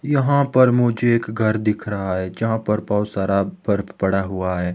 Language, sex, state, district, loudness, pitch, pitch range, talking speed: Hindi, male, Himachal Pradesh, Shimla, -20 LUFS, 105 Hz, 95-120 Hz, 200 wpm